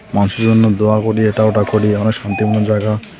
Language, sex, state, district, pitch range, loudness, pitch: Bengali, male, West Bengal, Alipurduar, 105-110 Hz, -14 LUFS, 110 Hz